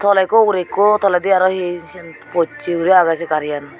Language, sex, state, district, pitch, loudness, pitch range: Chakma, female, Tripura, Unakoti, 180 Hz, -16 LUFS, 165-195 Hz